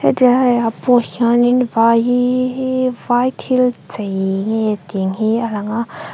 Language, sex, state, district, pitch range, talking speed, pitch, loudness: Mizo, female, Mizoram, Aizawl, 220-250 Hz, 165 wpm, 240 Hz, -16 LUFS